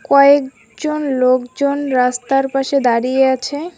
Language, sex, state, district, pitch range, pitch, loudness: Bengali, female, West Bengal, Alipurduar, 255-280 Hz, 270 Hz, -15 LUFS